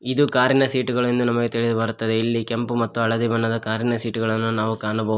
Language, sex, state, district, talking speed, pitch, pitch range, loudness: Kannada, male, Karnataka, Koppal, 195 wpm, 115 Hz, 115-120 Hz, -21 LUFS